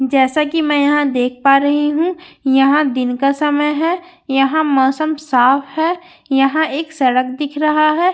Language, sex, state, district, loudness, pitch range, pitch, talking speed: Hindi, female, Bihar, Katihar, -15 LUFS, 270-315 Hz, 295 Hz, 185 wpm